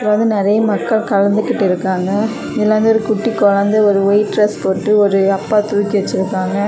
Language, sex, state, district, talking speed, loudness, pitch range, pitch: Tamil, female, Tamil Nadu, Kanyakumari, 155 wpm, -14 LUFS, 200-215 Hz, 205 Hz